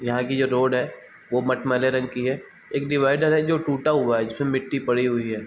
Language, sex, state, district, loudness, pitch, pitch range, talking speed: Hindi, male, Bihar, East Champaran, -23 LUFS, 130 Hz, 125-140 Hz, 275 wpm